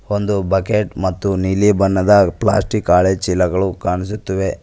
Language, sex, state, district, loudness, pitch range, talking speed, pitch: Kannada, male, Karnataka, Koppal, -16 LUFS, 95-105 Hz, 115 wpm, 95 Hz